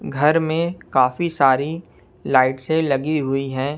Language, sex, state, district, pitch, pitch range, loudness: Hindi, male, Punjab, Kapurthala, 145 Hz, 135-160 Hz, -19 LUFS